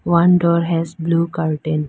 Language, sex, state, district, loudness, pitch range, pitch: English, female, Arunachal Pradesh, Lower Dibang Valley, -17 LUFS, 160-170 Hz, 165 Hz